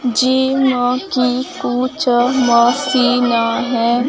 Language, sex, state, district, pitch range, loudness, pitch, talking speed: Hindi, female, Maharashtra, Gondia, 240-260 Hz, -15 LUFS, 250 Hz, 90 wpm